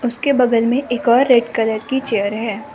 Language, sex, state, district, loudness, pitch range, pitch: Hindi, female, Arunachal Pradesh, Lower Dibang Valley, -16 LUFS, 225-260 Hz, 240 Hz